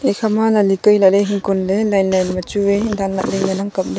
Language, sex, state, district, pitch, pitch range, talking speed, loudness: Wancho, female, Arunachal Pradesh, Longding, 200 Hz, 190-210 Hz, 270 wpm, -16 LUFS